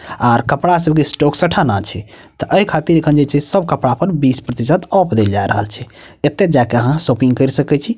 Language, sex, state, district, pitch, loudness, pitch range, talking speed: Maithili, male, Bihar, Purnia, 145 Hz, -14 LUFS, 120-170 Hz, 235 wpm